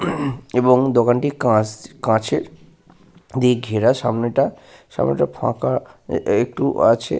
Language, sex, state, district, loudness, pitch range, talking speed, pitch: Bengali, male, West Bengal, Paschim Medinipur, -19 LUFS, 115-145 Hz, 100 wpm, 125 Hz